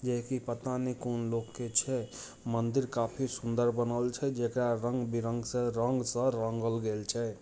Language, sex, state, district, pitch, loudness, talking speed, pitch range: Hindi, male, Bihar, Muzaffarpur, 120 Hz, -33 LUFS, 170 wpm, 115-125 Hz